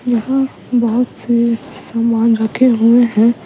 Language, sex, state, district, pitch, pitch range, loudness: Hindi, female, Bihar, Patna, 235 Hz, 230-245 Hz, -14 LUFS